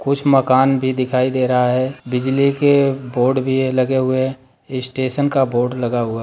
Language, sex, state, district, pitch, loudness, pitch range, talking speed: Hindi, male, Bihar, Darbhanga, 130 Hz, -17 LUFS, 125-135 Hz, 175 wpm